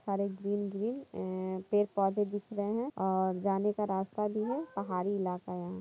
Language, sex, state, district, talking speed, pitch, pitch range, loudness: Hindi, female, Jharkhand, Jamtara, 185 wpm, 200 Hz, 190-210 Hz, -34 LUFS